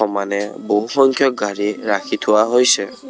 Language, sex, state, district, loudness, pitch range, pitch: Assamese, male, Assam, Kamrup Metropolitan, -17 LUFS, 105-130 Hz, 110 Hz